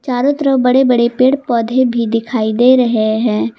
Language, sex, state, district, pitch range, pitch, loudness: Hindi, female, Jharkhand, Garhwa, 230-260 Hz, 245 Hz, -13 LUFS